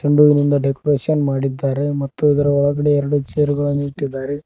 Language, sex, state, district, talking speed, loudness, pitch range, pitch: Kannada, male, Karnataka, Koppal, 135 wpm, -17 LUFS, 140-145 Hz, 145 Hz